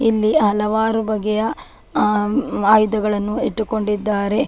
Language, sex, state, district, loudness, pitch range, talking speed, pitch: Kannada, female, Karnataka, Dakshina Kannada, -18 LUFS, 210-220 Hz, 80 wpm, 215 Hz